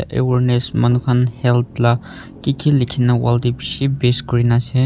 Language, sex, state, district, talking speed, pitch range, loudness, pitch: Nagamese, male, Nagaland, Kohima, 150 wpm, 120-130 Hz, -17 LUFS, 125 Hz